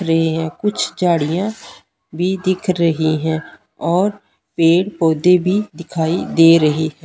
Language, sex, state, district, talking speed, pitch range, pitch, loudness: Hindi, female, Punjab, Pathankot, 135 wpm, 160-185 Hz, 170 Hz, -17 LUFS